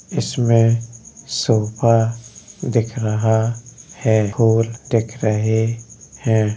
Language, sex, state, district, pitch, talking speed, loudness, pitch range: Hindi, male, Uttar Pradesh, Jalaun, 115 Hz, 75 wpm, -19 LUFS, 110-115 Hz